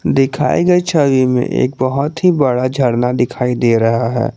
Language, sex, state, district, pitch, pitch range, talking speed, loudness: Hindi, male, Jharkhand, Garhwa, 130 Hz, 125-145 Hz, 180 wpm, -14 LUFS